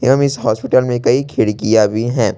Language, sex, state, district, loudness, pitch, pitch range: Hindi, male, Jharkhand, Ranchi, -15 LUFS, 120 Hz, 110-135 Hz